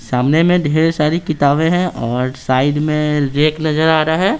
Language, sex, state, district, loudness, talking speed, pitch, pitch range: Hindi, male, Bihar, Patna, -15 LUFS, 190 wpm, 150 Hz, 140-160 Hz